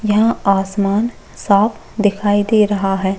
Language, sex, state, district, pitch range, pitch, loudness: Hindi, female, Chhattisgarh, Bastar, 195-215 Hz, 205 Hz, -16 LUFS